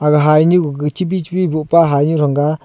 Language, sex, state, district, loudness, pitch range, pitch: Wancho, male, Arunachal Pradesh, Longding, -14 LUFS, 150-170 Hz, 155 Hz